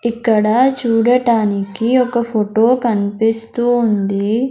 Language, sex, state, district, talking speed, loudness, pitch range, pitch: Telugu, female, Andhra Pradesh, Sri Satya Sai, 80 wpm, -15 LUFS, 215-240 Hz, 230 Hz